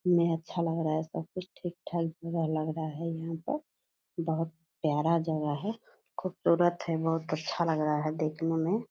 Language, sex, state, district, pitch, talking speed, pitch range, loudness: Hindi, female, Bihar, Purnia, 165 Hz, 190 wpm, 160-175 Hz, -31 LUFS